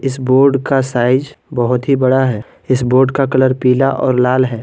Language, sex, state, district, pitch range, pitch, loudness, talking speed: Hindi, male, Jharkhand, Garhwa, 125-135 Hz, 130 Hz, -14 LUFS, 210 wpm